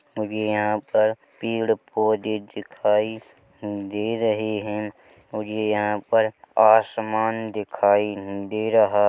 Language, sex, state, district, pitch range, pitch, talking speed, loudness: Hindi, male, Chhattisgarh, Rajnandgaon, 105-110 Hz, 105 Hz, 110 wpm, -23 LUFS